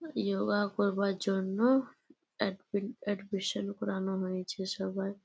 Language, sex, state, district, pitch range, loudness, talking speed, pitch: Bengali, female, West Bengal, Jalpaiguri, 190-205 Hz, -33 LUFS, 90 wpm, 195 Hz